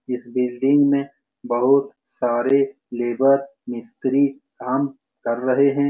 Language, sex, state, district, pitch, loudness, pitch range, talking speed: Hindi, male, Bihar, Saran, 135 Hz, -21 LUFS, 125-140 Hz, 110 wpm